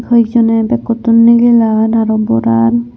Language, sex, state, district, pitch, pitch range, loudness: Chakma, female, Tripura, Unakoti, 225 Hz, 215-235 Hz, -10 LUFS